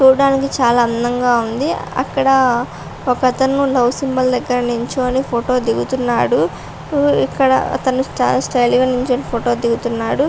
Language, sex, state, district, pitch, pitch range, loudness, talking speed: Telugu, female, Andhra Pradesh, Visakhapatnam, 250 Hz, 240-265 Hz, -16 LUFS, 115 wpm